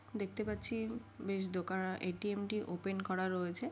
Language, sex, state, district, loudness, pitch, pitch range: Bengali, female, West Bengal, Paschim Medinipur, -39 LUFS, 195 Hz, 185-210 Hz